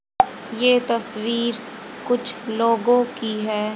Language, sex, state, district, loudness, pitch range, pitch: Hindi, female, Haryana, Jhajjar, -21 LUFS, 225-245 Hz, 235 Hz